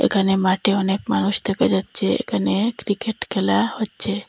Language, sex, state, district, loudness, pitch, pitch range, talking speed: Bengali, female, Assam, Hailakandi, -20 LUFS, 200 Hz, 190-220 Hz, 140 wpm